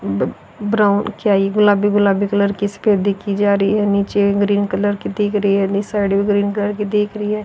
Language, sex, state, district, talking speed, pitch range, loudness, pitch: Hindi, female, Haryana, Rohtak, 145 wpm, 200-205 Hz, -17 LUFS, 205 Hz